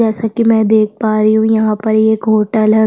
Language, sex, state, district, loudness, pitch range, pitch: Hindi, female, Chhattisgarh, Sukma, -12 LUFS, 215-220 Hz, 220 Hz